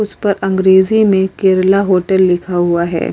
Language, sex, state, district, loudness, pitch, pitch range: Hindi, female, Uttar Pradesh, Hamirpur, -12 LUFS, 190 Hz, 180-195 Hz